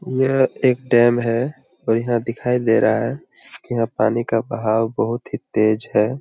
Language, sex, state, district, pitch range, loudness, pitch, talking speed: Hindi, male, Jharkhand, Jamtara, 115-125 Hz, -19 LUFS, 120 Hz, 185 wpm